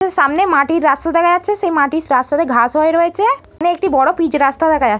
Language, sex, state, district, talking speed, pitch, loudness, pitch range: Bengali, female, West Bengal, Malda, 215 wpm, 325 Hz, -14 LUFS, 285-360 Hz